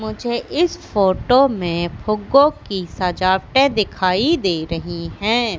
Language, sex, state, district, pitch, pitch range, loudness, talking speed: Hindi, female, Madhya Pradesh, Katni, 210 Hz, 180-245 Hz, -18 LUFS, 120 wpm